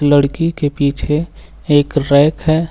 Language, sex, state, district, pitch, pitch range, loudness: Hindi, male, Uttar Pradesh, Lucknow, 145 Hz, 145-160 Hz, -15 LUFS